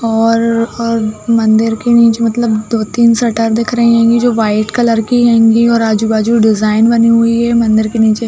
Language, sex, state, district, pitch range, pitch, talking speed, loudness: Hindi, female, Uttar Pradesh, Budaun, 220-235 Hz, 230 Hz, 180 wpm, -11 LUFS